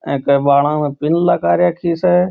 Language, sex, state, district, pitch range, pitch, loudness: Marwari, male, Rajasthan, Churu, 140-170 Hz, 150 Hz, -15 LUFS